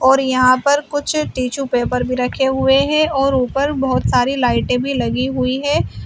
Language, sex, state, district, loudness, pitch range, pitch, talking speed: Hindi, female, Uttar Pradesh, Shamli, -16 LUFS, 250-275 Hz, 265 Hz, 190 wpm